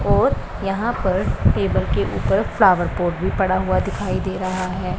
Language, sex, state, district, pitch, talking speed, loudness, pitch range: Hindi, female, Punjab, Pathankot, 185 Hz, 180 wpm, -20 LUFS, 180-190 Hz